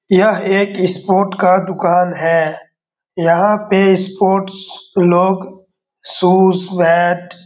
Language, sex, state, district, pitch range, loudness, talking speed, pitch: Hindi, male, Bihar, Darbhanga, 175-195 Hz, -14 LUFS, 105 wpm, 185 Hz